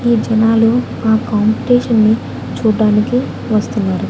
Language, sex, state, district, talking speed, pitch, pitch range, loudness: Telugu, female, Andhra Pradesh, Annamaya, 100 wpm, 220 Hz, 215-235 Hz, -14 LUFS